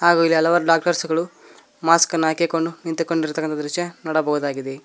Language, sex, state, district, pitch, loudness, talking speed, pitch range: Kannada, male, Karnataka, Koppal, 165 Hz, -20 LUFS, 135 wpm, 155-170 Hz